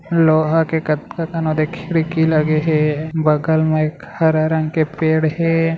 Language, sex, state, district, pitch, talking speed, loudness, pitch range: Chhattisgarhi, male, Chhattisgarh, Raigarh, 160 Hz, 165 wpm, -17 LUFS, 155-165 Hz